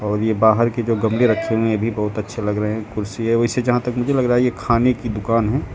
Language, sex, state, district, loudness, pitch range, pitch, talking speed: Hindi, female, Uttar Pradesh, Lucknow, -19 LUFS, 110-120 Hz, 115 Hz, 315 wpm